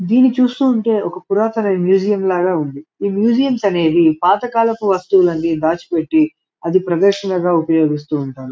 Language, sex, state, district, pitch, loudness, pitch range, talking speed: Telugu, male, Telangana, Karimnagar, 190 Hz, -16 LUFS, 165-225 Hz, 135 wpm